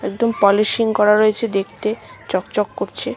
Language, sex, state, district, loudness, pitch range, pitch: Bengali, female, West Bengal, Malda, -18 LUFS, 210-230 Hz, 215 Hz